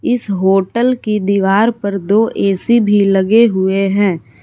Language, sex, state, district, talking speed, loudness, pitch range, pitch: Hindi, female, Jharkhand, Palamu, 150 wpm, -13 LUFS, 195-225 Hz, 200 Hz